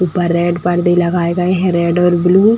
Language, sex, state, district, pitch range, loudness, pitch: Hindi, female, Uttar Pradesh, Etah, 175-180 Hz, -14 LUFS, 175 Hz